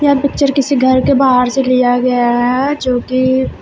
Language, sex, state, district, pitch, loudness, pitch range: Hindi, female, Uttar Pradesh, Shamli, 260 Hz, -13 LUFS, 250-275 Hz